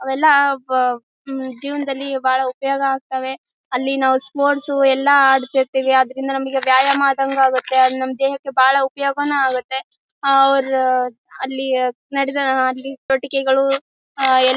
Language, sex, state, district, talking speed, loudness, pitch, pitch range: Kannada, female, Karnataka, Bellary, 105 wpm, -17 LUFS, 265 Hz, 260-275 Hz